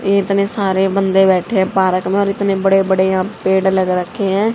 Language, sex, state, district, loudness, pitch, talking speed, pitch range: Hindi, female, Haryana, Charkhi Dadri, -15 LUFS, 195 Hz, 225 wpm, 190-200 Hz